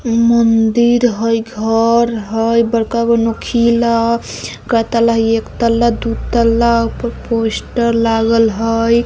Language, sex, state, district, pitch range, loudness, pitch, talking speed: Bajjika, female, Bihar, Vaishali, 225-235 Hz, -14 LUFS, 230 Hz, 125 wpm